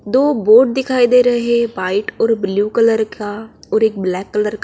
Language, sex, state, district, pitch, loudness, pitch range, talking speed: Hindi, female, Bihar, Araria, 220 Hz, -15 LUFS, 205-240 Hz, 220 wpm